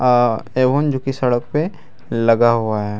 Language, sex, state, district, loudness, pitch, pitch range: Hindi, male, Bihar, Araria, -17 LUFS, 125 Hz, 115-135 Hz